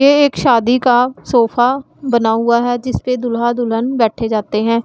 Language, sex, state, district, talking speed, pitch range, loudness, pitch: Hindi, female, Punjab, Pathankot, 185 wpm, 230-250 Hz, -15 LUFS, 240 Hz